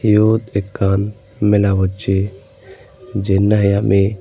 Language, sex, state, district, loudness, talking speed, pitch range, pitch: Chakma, male, Tripura, Unakoti, -16 LUFS, 100 wpm, 95-105 Hz, 100 Hz